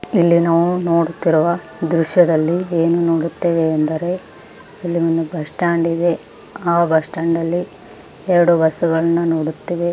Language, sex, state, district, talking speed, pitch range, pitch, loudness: Kannada, female, Karnataka, Raichur, 110 wpm, 165-175 Hz, 170 Hz, -17 LUFS